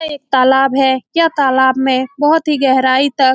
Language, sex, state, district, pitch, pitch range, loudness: Hindi, female, Bihar, Saran, 270 Hz, 260-290 Hz, -13 LUFS